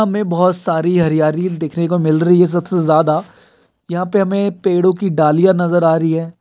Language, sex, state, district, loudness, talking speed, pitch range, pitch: Hindi, male, Bihar, Kishanganj, -15 LUFS, 195 wpm, 160-185 Hz, 175 Hz